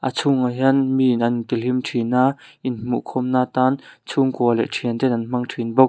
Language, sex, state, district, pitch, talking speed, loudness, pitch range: Mizo, male, Mizoram, Aizawl, 125 Hz, 205 wpm, -20 LUFS, 120-130 Hz